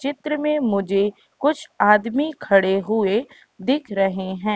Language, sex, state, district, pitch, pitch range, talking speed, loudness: Hindi, female, Madhya Pradesh, Katni, 215 Hz, 195-290 Hz, 130 wpm, -21 LUFS